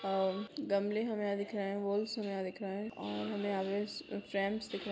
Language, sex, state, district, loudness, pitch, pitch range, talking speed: Hindi, female, Bihar, Madhepura, -37 LUFS, 200 Hz, 195-210 Hz, 230 wpm